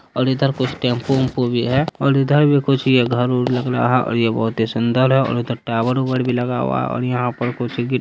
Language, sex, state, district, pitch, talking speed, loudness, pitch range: Hindi, male, Bihar, Saharsa, 125 Hz, 285 wpm, -18 LUFS, 120-130 Hz